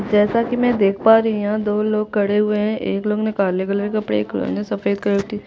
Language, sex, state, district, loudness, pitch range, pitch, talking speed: Hindi, female, Chhattisgarh, Jashpur, -19 LUFS, 200-215 Hz, 210 Hz, 320 wpm